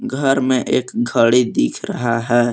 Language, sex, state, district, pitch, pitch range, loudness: Hindi, male, Jharkhand, Palamu, 125 Hz, 115-135 Hz, -17 LUFS